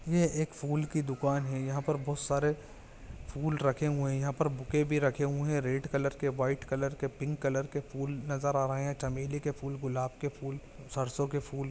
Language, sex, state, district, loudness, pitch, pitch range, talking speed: Hindi, male, Chhattisgarh, Bilaspur, -33 LUFS, 140 Hz, 135-145 Hz, 225 wpm